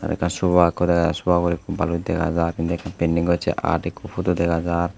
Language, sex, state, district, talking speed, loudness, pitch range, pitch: Chakma, male, Tripura, Unakoti, 255 wpm, -21 LUFS, 85-90 Hz, 85 Hz